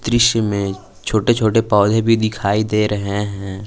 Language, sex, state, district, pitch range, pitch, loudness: Hindi, male, Jharkhand, Palamu, 100-110 Hz, 105 Hz, -17 LUFS